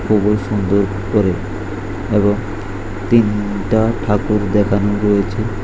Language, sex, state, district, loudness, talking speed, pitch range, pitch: Bengali, male, Tripura, West Tripura, -17 LUFS, 85 wpm, 100-105 Hz, 105 Hz